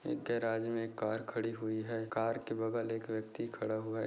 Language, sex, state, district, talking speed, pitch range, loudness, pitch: Hindi, male, Bihar, Jahanabad, 220 wpm, 110-115 Hz, -37 LUFS, 115 Hz